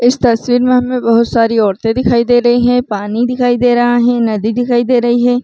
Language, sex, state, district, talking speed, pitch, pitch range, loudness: Chhattisgarhi, female, Chhattisgarh, Raigarh, 230 wpm, 240 Hz, 230-245 Hz, -12 LUFS